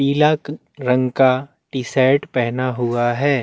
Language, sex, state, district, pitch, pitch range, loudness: Hindi, male, Chhattisgarh, Jashpur, 130 Hz, 125-140 Hz, -18 LUFS